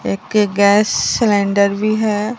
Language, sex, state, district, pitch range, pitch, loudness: Hindi, female, Bihar, Katihar, 200-215 Hz, 205 Hz, -15 LUFS